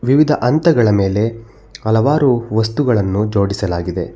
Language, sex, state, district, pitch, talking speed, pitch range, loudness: Kannada, male, Karnataka, Bangalore, 110 Hz, 85 wpm, 100-130 Hz, -15 LUFS